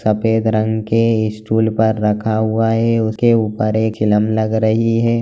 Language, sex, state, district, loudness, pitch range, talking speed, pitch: Hindi, male, Chhattisgarh, Raigarh, -16 LUFS, 110-115 Hz, 170 wpm, 110 Hz